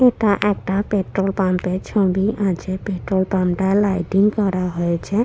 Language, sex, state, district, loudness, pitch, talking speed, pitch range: Bengali, female, West Bengal, Purulia, -19 LUFS, 195 Hz, 135 wpm, 185-205 Hz